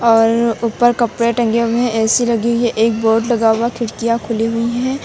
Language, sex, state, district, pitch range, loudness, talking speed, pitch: Hindi, female, Uttar Pradesh, Lucknow, 225-235 Hz, -15 LUFS, 200 wpm, 235 Hz